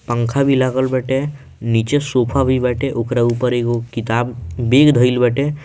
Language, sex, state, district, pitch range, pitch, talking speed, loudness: Bhojpuri, male, Bihar, Muzaffarpur, 120-135 Hz, 125 Hz, 160 wpm, -17 LUFS